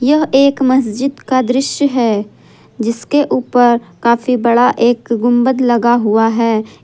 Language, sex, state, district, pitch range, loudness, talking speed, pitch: Hindi, female, Jharkhand, Ranchi, 230-260 Hz, -13 LUFS, 130 wpm, 240 Hz